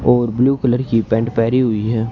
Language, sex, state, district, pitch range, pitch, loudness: Hindi, male, Haryana, Rohtak, 115-125 Hz, 115 Hz, -16 LUFS